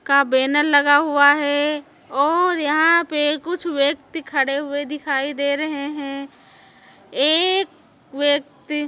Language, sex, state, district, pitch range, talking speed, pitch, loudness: Hindi, female, Chhattisgarh, Raipur, 280-310 Hz, 120 wpm, 290 Hz, -19 LUFS